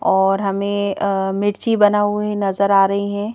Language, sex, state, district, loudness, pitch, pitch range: Hindi, female, Madhya Pradesh, Bhopal, -18 LUFS, 200 Hz, 195-205 Hz